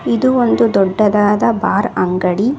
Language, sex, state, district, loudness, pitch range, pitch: Kannada, female, Karnataka, Koppal, -14 LUFS, 190-235 Hz, 210 Hz